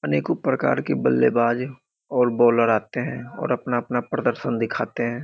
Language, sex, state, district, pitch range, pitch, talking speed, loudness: Hindi, male, Bihar, Muzaffarpur, 115-125 Hz, 120 Hz, 150 wpm, -22 LUFS